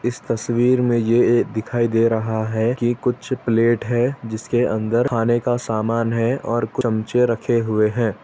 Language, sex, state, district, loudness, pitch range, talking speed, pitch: Hindi, male, Chhattisgarh, Bastar, -20 LUFS, 115-120 Hz, 175 wpm, 115 Hz